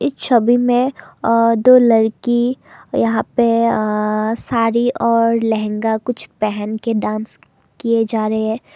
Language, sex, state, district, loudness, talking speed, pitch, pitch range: Hindi, female, Assam, Kamrup Metropolitan, -16 LUFS, 125 wpm, 230 Hz, 220-240 Hz